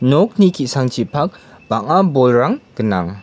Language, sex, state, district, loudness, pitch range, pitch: Garo, male, Meghalaya, West Garo Hills, -16 LUFS, 115-175 Hz, 130 Hz